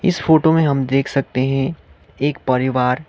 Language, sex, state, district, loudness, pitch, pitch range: Hindi, male, Sikkim, Gangtok, -17 LUFS, 135 Hz, 130-160 Hz